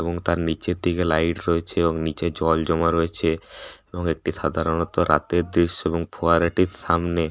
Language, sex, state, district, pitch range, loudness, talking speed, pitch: Bengali, male, Jharkhand, Sahebganj, 80-85 Hz, -22 LUFS, 155 wpm, 85 Hz